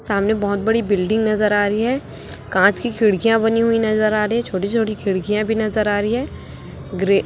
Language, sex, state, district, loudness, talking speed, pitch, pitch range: Hindi, male, Chhattisgarh, Raipur, -18 LUFS, 225 wpm, 215 Hz, 205-225 Hz